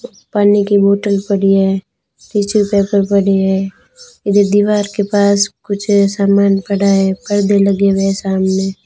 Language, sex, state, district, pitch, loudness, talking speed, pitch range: Hindi, female, Rajasthan, Bikaner, 200 Hz, -13 LUFS, 140 wpm, 195-205 Hz